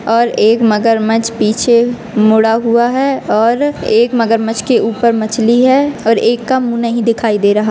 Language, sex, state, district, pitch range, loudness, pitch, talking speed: Hindi, female, Rajasthan, Churu, 220-240 Hz, -12 LUFS, 230 Hz, 170 wpm